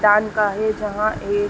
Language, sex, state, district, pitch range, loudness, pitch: Hindi, female, Uttar Pradesh, Etah, 205-215 Hz, -20 LUFS, 210 Hz